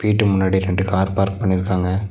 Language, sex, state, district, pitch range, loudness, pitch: Tamil, male, Tamil Nadu, Nilgiris, 95-100 Hz, -19 LUFS, 95 Hz